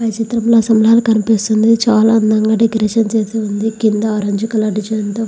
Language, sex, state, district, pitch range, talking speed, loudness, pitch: Telugu, female, Andhra Pradesh, Visakhapatnam, 215-225 Hz, 170 wpm, -14 LUFS, 220 Hz